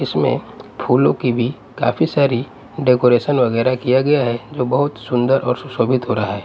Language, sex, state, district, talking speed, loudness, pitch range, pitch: Hindi, male, Punjab, Pathankot, 175 wpm, -17 LUFS, 120-135 Hz, 125 Hz